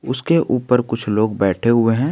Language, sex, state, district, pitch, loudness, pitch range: Hindi, male, Jharkhand, Garhwa, 120 Hz, -17 LUFS, 110-125 Hz